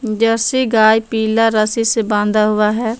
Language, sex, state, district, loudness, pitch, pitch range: Hindi, female, Jharkhand, Palamu, -14 LUFS, 225 Hz, 215-225 Hz